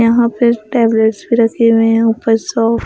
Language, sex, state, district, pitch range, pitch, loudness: Hindi, female, Punjab, Pathankot, 225-235 Hz, 230 Hz, -13 LUFS